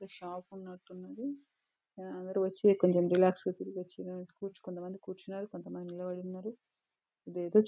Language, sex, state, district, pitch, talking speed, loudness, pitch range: Telugu, female, Telangana, Nalgonda, 185 Hz, 135 wpm, -35 LUFS, 180-195 Hz